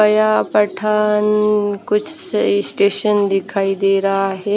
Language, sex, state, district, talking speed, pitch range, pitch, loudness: Hindi, female, Haryana, Rohtak, 105 wpm, 195-210 Hz, 205 Hz, -16 LUFS